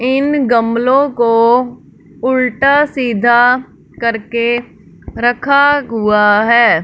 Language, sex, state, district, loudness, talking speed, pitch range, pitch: Hindi, female, Punjab, Fazilka, -12 LUFS, 80 wpm, 235-265 Hz, 240 Hz